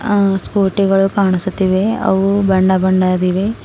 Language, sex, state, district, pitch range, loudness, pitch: Kannada, female, Karnataka, Bidar, 185-200 Hz, -14 LUFS, 195 Hz